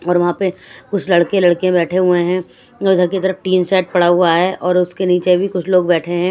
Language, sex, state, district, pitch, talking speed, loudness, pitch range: Hindi, female, Delhi, New Delhi, 180 Hz, 240 wpm, -15 LUFS, 175-185 Hz